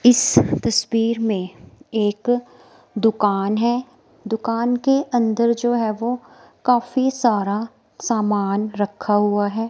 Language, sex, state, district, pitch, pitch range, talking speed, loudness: Hindi, female, Himachal Pradesh, Shimla, 230 Hz, 210-245 Hz, 110 wpm, -20 LUFS